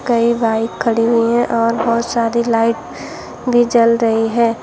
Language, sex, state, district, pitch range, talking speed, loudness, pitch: Hindi, female, Uttar Pradesh, Shamli, 230-235 Hz, 170 wpm, -15 LUFS, 230 Hz